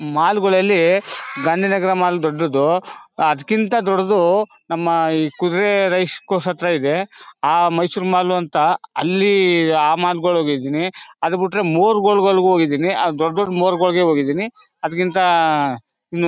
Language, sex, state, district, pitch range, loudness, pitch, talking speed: Kannada, male, Karnataka, Mysore, 160-190 Hz, -17 LUFS, 180 Hz, 125 wpm